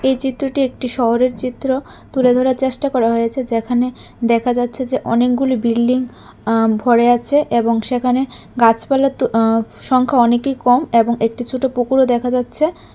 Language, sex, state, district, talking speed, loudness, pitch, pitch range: Bengali, female, Tripura, West Tripura, 155 wpm, -16 LUFS, 250 Hz, 235-260 Hz